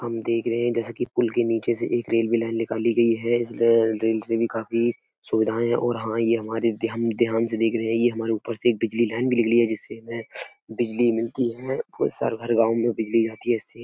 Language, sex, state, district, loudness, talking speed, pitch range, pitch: Hindi, male, Uttar Pradesh, Etah, -24 LUFS, 240 wpm, 115-120 Hz, 115 Hz